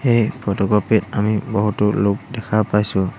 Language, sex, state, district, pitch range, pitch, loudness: Assamese, male, Assam, Hailakandi, 100-110 Hz, 105 Hz, -19 LUFS